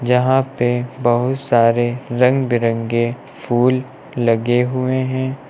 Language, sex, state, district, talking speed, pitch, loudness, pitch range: Hindi, male, Uttar Pradesh, Lucknow, 110 wpm, 125 Hz, -17 LUFS, 120-130 Hz